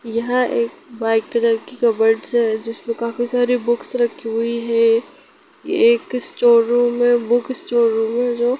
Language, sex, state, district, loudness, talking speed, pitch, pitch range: Hindi, female, Bihar, Sitamarhi, -17 LUFS, 165 wpm, 235 Hz, 230-245 Hz